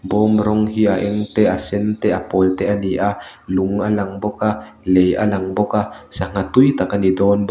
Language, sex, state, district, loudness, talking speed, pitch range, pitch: Mizo, male, Mizoram, Aizawl, -18 LUFS, 255 wpm, 95-105 Hz, 100 Hz